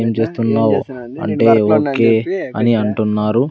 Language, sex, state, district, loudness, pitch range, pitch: Telugu, male, Andhra Pradesh, Sri Satya Sai, -15 LUFS, 110-115 Hz, 115 Hz